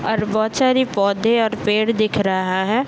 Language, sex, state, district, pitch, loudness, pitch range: Hindi, male, Bihar, Bhagalpur, 215 Hz, -18 LUFS, 200-230 Hz